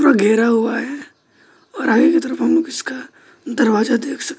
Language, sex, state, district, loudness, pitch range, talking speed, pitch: Hindi, male, West Bengal, Alipurduar, -17 LUFS, 235-310 Hz, 165 wpm, 280 Hz